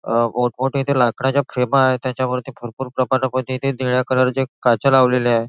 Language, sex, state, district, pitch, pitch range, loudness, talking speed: Marathi, male, Maharashtra, Nagpur, 130 Hz, 125-130 Hz, -18 LUFS, 140 wpm